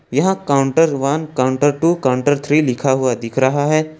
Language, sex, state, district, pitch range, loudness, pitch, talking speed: Hindi, male, Jharkhand, Ranchi, 130-155 Hz, -16 LUFS, 140 Hz, 180 wpm